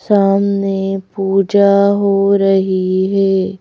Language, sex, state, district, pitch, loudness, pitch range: Hindi, female, Madhya Pradesh, Bhopal, 195 Hz, -13 LUFS, 190-200 Hz